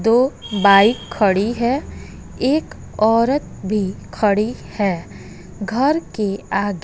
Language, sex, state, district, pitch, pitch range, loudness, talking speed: Hindi, female, Bihar, West Champaran, 215 Hz, 200-240 Hz, -18 LUFS, 105 wpm